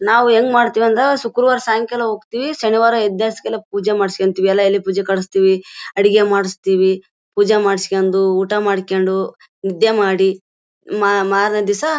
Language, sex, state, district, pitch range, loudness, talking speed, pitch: Kannada, female, Karnataka, Bellary, 195-225 Hz, -16 LUFS, 135 wpm, 200 Hz